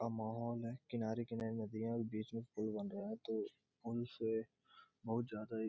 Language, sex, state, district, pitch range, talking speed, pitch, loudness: Hindi, male, Bihar, Gopalganj, 110-120 Hz, 200 wpm, 115 Hz, -44 LUFS